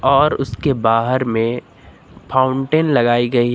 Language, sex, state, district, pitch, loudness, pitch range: Hindi, male, Uttar Pradesh, Lucknow, 120 Hz, -16 LUFS, 115-135 Hz